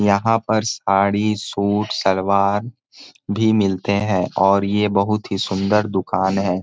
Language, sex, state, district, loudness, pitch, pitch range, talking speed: Hindi, male, Jharkhand, Sahebganj, -19 LUFS, 100 Hz, 95-105 Hz, 135 wpm